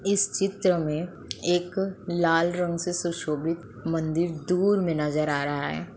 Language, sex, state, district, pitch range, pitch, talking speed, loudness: Hindi, female, Bihar, Begusarai, 160-180 Hz, 175 Hz, 150 wpm, -26 LUFS